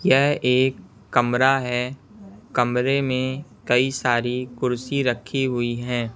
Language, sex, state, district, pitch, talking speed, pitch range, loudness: Hindi, male, Punjab, Kapurthala, 125 Hz, 115 wpm, 120-135 Hz, -22 LUFS